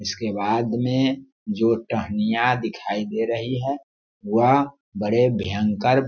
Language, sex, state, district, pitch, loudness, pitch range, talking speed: Hindi, male, Bihar, Sitamarhi, 115 Hz, -23 LUFS, 105-130 Hz, 130 wpm